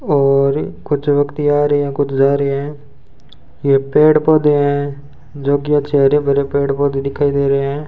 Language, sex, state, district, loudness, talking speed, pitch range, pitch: Hindi, male, Rajasthan, Bikaner, -15 LUFS, 190 wpm, 140-145 Hz, 140 Hz